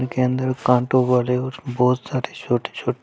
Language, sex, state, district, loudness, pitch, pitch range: Hindi, male, Punjab, Fazilka, -21 LUFS, 125 Hz, 125-130 Hz